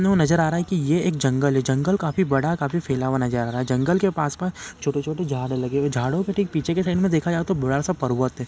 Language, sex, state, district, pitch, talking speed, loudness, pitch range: Hindi, male, Uttarakhand, Uttarkashi, 155 Hz, 305 wpm, -22 LUFS, 135-180 Hz